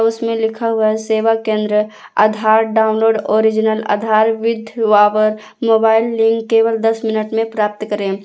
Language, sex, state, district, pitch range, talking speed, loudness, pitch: Hindi, female, Jharkhand, Palamu, 215-225 Hz, 140 wpm, -15 LUFS, 220 Hz